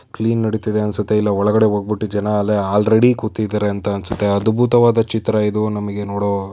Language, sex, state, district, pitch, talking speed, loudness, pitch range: Kannada, female, Karnataka, Chamarajanagar, 105 Hz, 145 wpm, -17 LUFS, 105-110 Hz